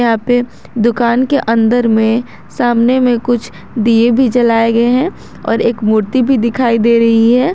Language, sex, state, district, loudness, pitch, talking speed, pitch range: Hindi, female, Jharkhand, Garhwa, -12 LUFS, 235 Hz, 175 wpm, 230-245 Hz